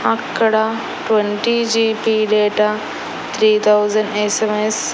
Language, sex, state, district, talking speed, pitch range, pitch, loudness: Telugu, female, Andhra Pradesh, Annamaya, 95 wpm, 210-220 Hz, 215 Hz, -16 LUFS